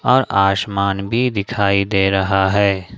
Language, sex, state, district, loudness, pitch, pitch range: Hindi, male, Jharkhand, Ranchi, -17 LUFS, 100 Hz, 95-105 Hz